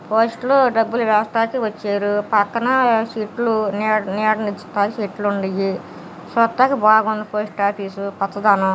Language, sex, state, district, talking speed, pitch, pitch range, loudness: Telugu, male, Andhra Pradesh, Guntur, 125 wpm, 215 Hz, 205-230 Hz, -19 LUFS